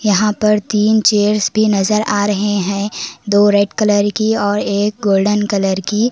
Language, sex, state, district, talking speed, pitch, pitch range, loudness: Hindi, female, Karnataka, Koppal, 175 wpm, 205 Hz, 205-210 Hz, -15 LUFS